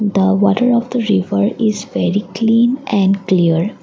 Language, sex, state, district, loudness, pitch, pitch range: English, female, Assam, Kamrup Metropolitan, -15 LUFS, 205 Hz, 195-230 Hz